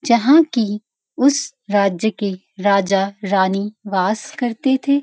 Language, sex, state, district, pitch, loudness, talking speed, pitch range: Hindi, female, Uttarakhand, Uttarkashi, 215 Hz, -18 LUFS, 105 wpm, 200-265 Hz